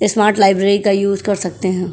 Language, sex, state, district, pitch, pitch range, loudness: Hindi, female, Uttar Pradesh, Jyotiba Phule Nagar, 195 Hz, 190-205 Hz, -15 LUFS